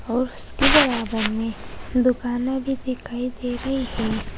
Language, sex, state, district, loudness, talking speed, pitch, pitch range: Hindi, female, Uttar Pradesh, Saharanpur, -22 LUFS, 135 wpm, 245 Hz, 230-260 Hz